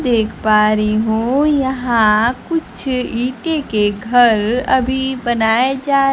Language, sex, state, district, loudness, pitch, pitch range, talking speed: Hindi, female, Bihar, Kaimur, -15 LUFS, 245 Hz, 220-265 Hz, 115 wpm